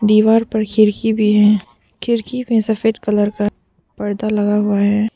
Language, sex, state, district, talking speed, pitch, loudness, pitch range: Hindi, female, Arunachal Pradesh, Papum Pare, 160 wpm, 215 Hz, -16 LUFS, 210-220 Hz